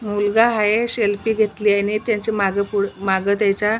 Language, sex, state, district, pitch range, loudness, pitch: Marathi, female, Maharashtra, Nagpur, 200-220 Hz, -19 LUFS, 210 Hz